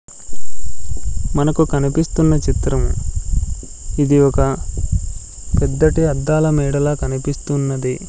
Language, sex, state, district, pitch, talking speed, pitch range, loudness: Telugu, male, Andhra Pradesh, Sri Satya Sai, 135 Hz, 65 wpm, 90-150 Hz, -18 LUFS